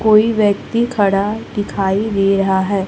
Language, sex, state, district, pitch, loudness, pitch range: Hindi, female, Chhattisgarh, Raipur, 200 Hz, -16 LUFS, 195-215 Hz